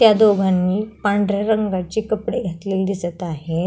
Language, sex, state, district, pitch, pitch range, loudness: Marathi, female, Maharashtra, Pune, 200 Hz, 180-215 Hz, -20 LUFS